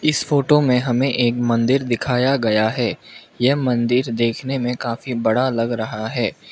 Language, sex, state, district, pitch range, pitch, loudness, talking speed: Hindi, male, Mizoram, Aizawl, 115-130 Hz, 120 Hz, -19 LUFS, 165 wpm